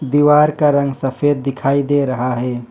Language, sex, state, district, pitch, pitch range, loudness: Hindi, male, Jharkhand, Ranchi, 140 Hz, 130-145 Hz, -16 LUFS